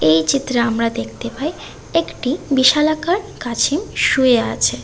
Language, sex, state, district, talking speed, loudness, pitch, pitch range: Bengali, female, Tripura, West Tripura, 125 wpm, -17 LUFS, 260 Hz, 230-305 Hz